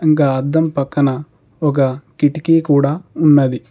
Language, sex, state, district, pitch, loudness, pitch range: Telugu, male, Telangana, Mahabubabad, 145 Hz, -15 LUFS, 135-155 Hz